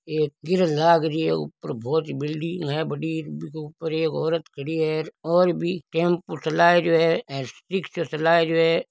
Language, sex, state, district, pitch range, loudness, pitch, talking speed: Marwari, male, Rajasthan, Nagaur, 155-170 Hz, -23 LUFS, 160 Hz, 175 wpm